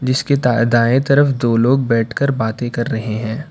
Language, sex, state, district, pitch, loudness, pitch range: Hindi, male, Karnataka, Bangalore, 120 Hz, -16 LUFS, 115-135 Hz